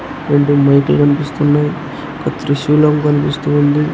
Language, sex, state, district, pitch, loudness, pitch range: Telugu, male, Andhra Pradesh, Anantapur, 145 Hz, -13 LUFS, 145-150 Hz